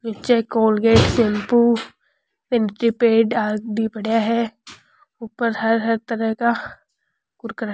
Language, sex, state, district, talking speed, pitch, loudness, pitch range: Rajasthani, female, Rajasthan, Churu, 130 wpm, 225 Hz, -19 LUFS, 220-235 Hz